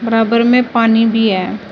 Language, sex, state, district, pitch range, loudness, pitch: Hindi, female, Uttar Pradesh, Shamli, 225-235 Hz, -13 LUFS, 225 Hz